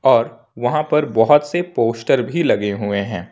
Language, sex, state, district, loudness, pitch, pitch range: Hindi, male, Jharkhand, Ranchi, -17 LUFS, 115 Hz, 105-150 Hz